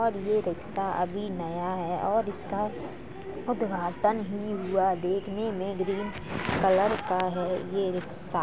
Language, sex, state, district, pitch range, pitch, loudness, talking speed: Hindi, female, Uttar Pradesh, Jalaun, 180-205 Hz, 195 Hz, -29 LUFS, 140 wpm